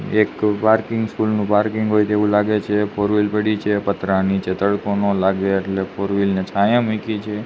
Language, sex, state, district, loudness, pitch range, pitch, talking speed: Gujarati, male, Gujarat, Gandhinagar, -19 LUFS, 100-105 Hz, 105 Hz, 185 wpm